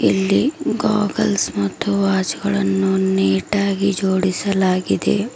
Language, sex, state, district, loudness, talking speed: Kannada, female, Karnataka, Bidar, -18 LUFS, 90 wpm